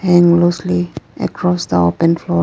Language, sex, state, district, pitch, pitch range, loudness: English, female, Arunachal Pradesh, Lower Dibang Valley, 175 Hz, 155-175 Hz, -15 LUFS